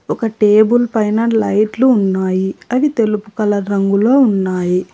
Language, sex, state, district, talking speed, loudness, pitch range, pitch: Telugu, female, Telangana, Hyderabad, 135 wpm, -14 LUFS, 195-230 Hz, 210 Hz